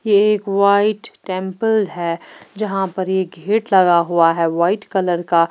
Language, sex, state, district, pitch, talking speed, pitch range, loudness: Hindi, female, Bihar, Patna, 190 Hz, 165 wpm, 175-205 Hz, -17 LUFS